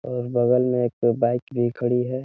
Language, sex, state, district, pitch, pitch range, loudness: Hindi, male, Uttar Pradesh, Ghazipur, 125 Hz, 120-125 Hz, -22 LUFS